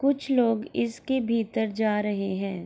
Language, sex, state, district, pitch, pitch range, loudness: Hindi, female, Bihar, Gopalganj, 220 Hz, 195-245 Hz, -26 LUFS